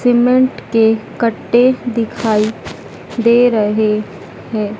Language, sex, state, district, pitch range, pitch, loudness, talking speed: Hindi, female, Madhya Pradesh, Dhar, 215-240 Hz, 225 Hz, -14 LUFS, 90 wpm